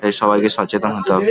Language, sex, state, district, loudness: Bengali, male, West Bengal, Paschim Medinipur, -17 LUFS